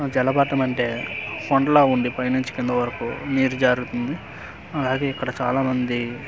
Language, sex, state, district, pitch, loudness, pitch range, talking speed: Telugu, male, Andhra Pradesh, Manyam, 130 Hz, -22 LUFS, 125-135 Hz, 155 wpm